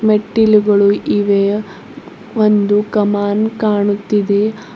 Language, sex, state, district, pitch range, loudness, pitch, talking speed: Kannada, female, Karnataka, Bidar, 205-215 Hz, -14 LUFS, 210 Hz, 65 wpm